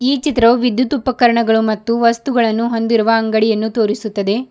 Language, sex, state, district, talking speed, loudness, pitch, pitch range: Kannada, female, Karnataka, Bidar, 120 wpm, -15 LUFS, 230 Hz, 220-245 Hz